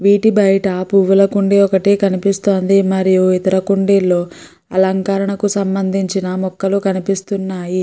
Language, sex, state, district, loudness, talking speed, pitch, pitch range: Telugu, female, Andhra Pradesh, Guntur, -15 LUFS, 100 wpm, 195 Hz, 190-200 Hz